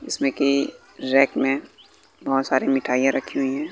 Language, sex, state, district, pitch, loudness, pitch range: Hindi, male, Bihar, West Champaran, 135 Hz, -22 LUFS, 135-140 Hz